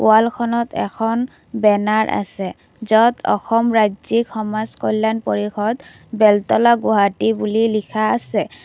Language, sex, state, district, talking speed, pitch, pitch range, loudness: Assamese, female, Assam, Kamrup Metropolitan, 105 wpm, 220 Hz, 210-230 Hz, -18 LUFS